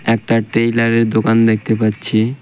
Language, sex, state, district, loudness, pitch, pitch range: Bengali, male, West Bengal, Cooch Behar, -15 LUFS, 115 Hz, 110-115 Hz